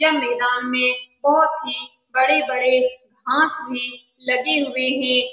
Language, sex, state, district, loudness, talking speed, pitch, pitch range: Hindi, female, Bihar, Saran, -19 LUFS, 125 wpm, 255 Hz, 250-290 Hz